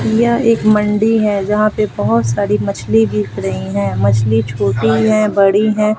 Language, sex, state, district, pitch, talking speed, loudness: Hindi, female, Bihar, West Champaran, 120 Hz, 170 wpm, -14 LUFS